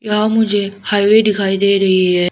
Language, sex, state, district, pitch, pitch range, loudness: Hindi, female, Arunachal Pradesh, Lower Dibang Valley, 200 Hz, 195-210 Hz, -14 LUFS